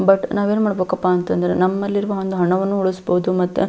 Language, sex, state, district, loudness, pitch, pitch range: Kannada, female, Karnataka, Belgaum, -19 LUFS, 185 Hz, 180-200 Hz